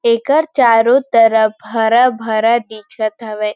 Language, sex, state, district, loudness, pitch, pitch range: Chhattisgarhi, female, Chhattisgarh, Rajnandgaon, -13 LUFS, 225 Hz, 220-240 Hz